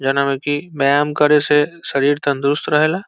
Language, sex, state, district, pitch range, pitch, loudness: Bhojpuri, male, Bihar, Saran, 140-150 Hz, 145 Hz, -17 LUFS